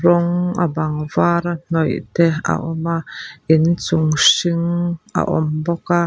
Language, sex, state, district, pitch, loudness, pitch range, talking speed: Mizo, female, Mizoram, Aizawl, 170 Hz, -18 LUFS, 160-175 Hz, 160 wpm